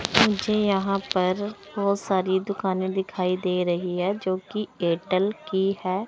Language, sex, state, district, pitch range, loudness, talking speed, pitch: Hindi, male, Chandigarh, Chandigarh, 185-200 Hz, -25 LUFS, 140 wpm, 190 Hz